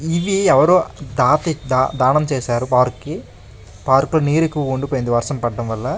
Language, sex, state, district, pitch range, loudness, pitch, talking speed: Telugu, male, Andhra Pradesh, Krishna, 120-155 Hz, -17 LUFS, 135 Hz, 170 wpm